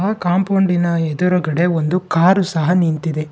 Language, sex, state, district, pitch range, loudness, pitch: Kannada, male, Karnataka, Bangalore, 160-180 Hz, -16 LUFS, 175 Hz